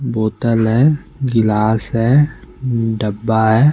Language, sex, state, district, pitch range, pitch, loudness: Hindi, male, Bihar, West Champaran, 110-130 Hz, 115 Hz, -16 LUFS